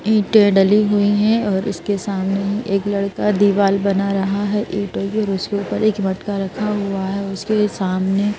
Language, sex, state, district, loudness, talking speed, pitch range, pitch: Hindi, female, Madhya Pradesh, Bhopal, -18 LUFS, 165 wpm, 195-210 Hz, 200 Hz